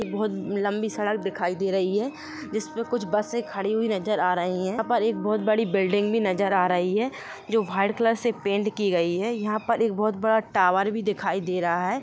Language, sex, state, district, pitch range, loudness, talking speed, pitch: Hindi, female, Jharkhand, Jamtara, 195-225 Hz, -25 LUFS, 235 wpm, 210 Hz